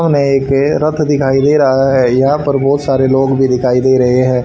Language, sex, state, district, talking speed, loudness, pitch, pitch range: Hindi, male, Haryana, Charkhi Dadri, 230 wpm, -12 LUFS, 135 Hz, 130-140 Hz